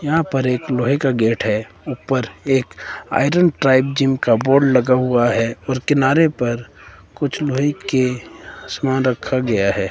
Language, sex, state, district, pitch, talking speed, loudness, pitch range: Hindi, male, Himachal Pradesh, Shimla, 130 Hz, 165 wpm, -18 LUFS, 120-135 Hz